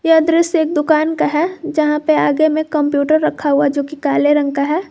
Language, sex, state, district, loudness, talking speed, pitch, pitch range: Hindi, female, Jharkhand, Garhwa, -15 LUFS, 230 wpm, 310 Hz, 290-320 Hz